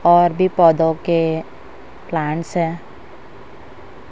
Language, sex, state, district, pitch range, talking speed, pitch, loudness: Hindi, female, Maharashtra, Mumbai Suburban, 160-175 Hz, 90 wpm, 165 Hz, -17 LUFS